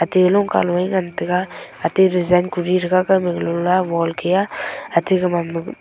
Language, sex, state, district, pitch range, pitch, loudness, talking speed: Wancho, female, Arunachal Pradesh, Longding, 175-185 Hz, 180 Hz, -18 LUFS, 165 wpm